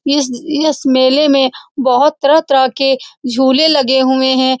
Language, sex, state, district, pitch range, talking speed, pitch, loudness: Hindi, female, Bihar, Saran, 260-290 Hz, 145 wpm, 270 Hz, -12 LUFS